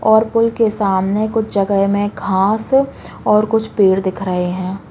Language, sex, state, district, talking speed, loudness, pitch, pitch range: Hindi, female, Uttar Pradesh, Deoria, 170 wpm, -16 LUFS, 205 Hz, 195-220 Hz